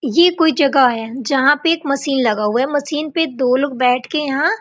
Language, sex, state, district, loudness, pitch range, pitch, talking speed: Hindi, female, Bihar, Gopalganj, -16 LUFS, 255-310 Hz, 280 Hz, 260 wpm